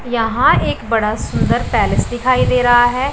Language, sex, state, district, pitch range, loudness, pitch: Hindi, female, Punjab, Pathankot, 230-255 Hz, -15 LUFS, 240 Hz